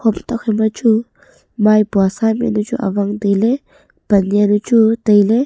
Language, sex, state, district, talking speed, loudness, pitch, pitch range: Wancho, female, Arunachal Pradesh, Longding, 155 wpm, -15 LUFS, 215 Hz, 205-230 Hz